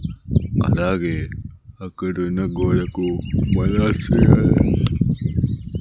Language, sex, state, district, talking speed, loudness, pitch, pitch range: Telugu, male, Andhra Pradesh, Sri Satya Sai, 40 wpm, -19 LUFS, 90 Hz, 90-95 Hz